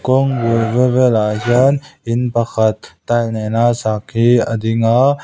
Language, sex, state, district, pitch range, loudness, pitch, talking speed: Mizo, male, Mizoram, Aizawl, 115-125 Hz, -15 LUFS, 120 Hz, 135 wpm